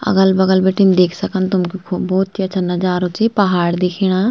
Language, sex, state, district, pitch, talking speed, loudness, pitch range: Garhwali, female, Uttarakhand, Tehri Garhwal, 190 Hz, 210 wpm, -16 LUFS, 180-195 Hz